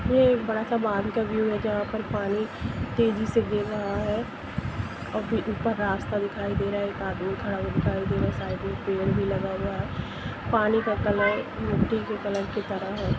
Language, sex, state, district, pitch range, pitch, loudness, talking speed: Hindi, female, Jharkhand, Jamtara, 200-220 Hz, 210 Hz, -27 LUFS, 215 wpm